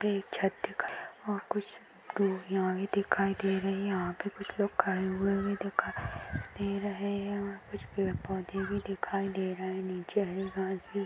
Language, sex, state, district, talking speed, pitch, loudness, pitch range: Hindi, female, Maharashtra, Nagpur, 205 wpm, 195 Hz, -33 LUFS, 190-200 Hz